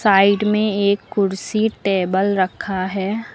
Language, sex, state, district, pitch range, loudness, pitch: Hindi, female, Uttar Pradesh, Lucknow, 190-210 Hz, -19 LUFS, 200 Hz